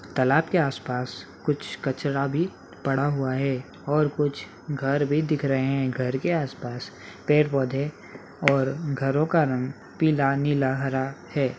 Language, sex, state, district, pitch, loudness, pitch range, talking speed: Hindi, male, Bihar, Muzaffarpur, 135 Hz, -25 LUFS, 130-145 Hz, 150 wpm